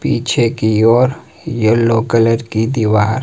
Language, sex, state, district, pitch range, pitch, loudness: Hindi, male, Himachal Pradesh, Shimla, 110-125 Hz, 115 Hz, -14 LUFS